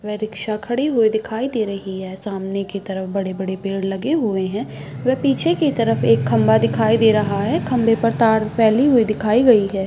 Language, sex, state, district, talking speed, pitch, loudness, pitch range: Hindi, female, Bihar, Saharsa, 215 wpm, 210 Hz, -18 LUFS, 195-230 Hz